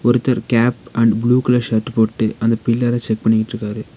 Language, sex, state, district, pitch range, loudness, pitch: Tamil, male, Tamil Nadu, Nilgiris, 110-120 Hz, -17 LUFS, 115 Hz